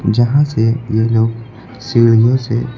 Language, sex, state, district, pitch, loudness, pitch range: Hindi, male, Uttar Pradesh, Lucknow, 115 Hz, -14 LUFS, 115-120 Hz